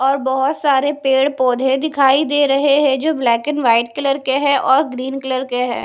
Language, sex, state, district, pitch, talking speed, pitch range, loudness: Hindi, female, Odisha, Nuapada, 270 Hz, 215 wpm, 265-285 Hz, -16 LUFS